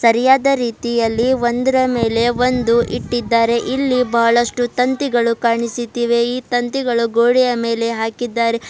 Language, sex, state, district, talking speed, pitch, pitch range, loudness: Kannada, female, Karnataka, Bidar, 105 wpm, 240 Hz, 235-250 Hz, -16 LUFS